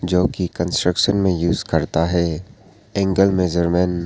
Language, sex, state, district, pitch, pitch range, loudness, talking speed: Hindi, male, Arunachal Pradesh, Papum Pare, 90 Hz, 85-90 Hz, -19 LUFS, 150 wpm